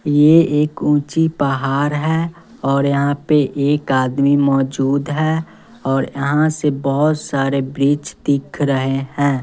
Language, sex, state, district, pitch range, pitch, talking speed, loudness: Hindi, male, Bihar, West Champaran, 135-150 Hz, 145 Hz, 135 wpm, -17 LUFS